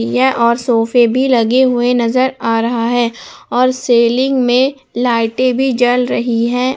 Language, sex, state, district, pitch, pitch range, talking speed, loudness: Hindi, female, Jharkhand, Palamu, 245 Hz, 235-255 Hz, 150 wpm, -13 LUFS